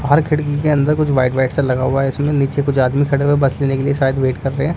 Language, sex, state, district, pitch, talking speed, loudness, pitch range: Hindi, male, Delhi, New Delhi, 140 Hz, 325 wpm, -16 LUFS, 135-145 Hz